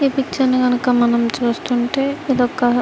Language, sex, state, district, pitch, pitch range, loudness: Telugu, female, Andhra Pradesh, Srikakulam, 250 Hz, 240-270 Hz, -17 LUFS